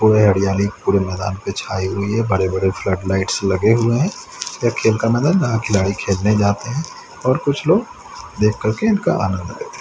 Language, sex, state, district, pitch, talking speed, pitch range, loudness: Hindi, male, Haryana, Rohtak, 105 Hz, 195 wpm, 95-145 Hz, -18 LUFS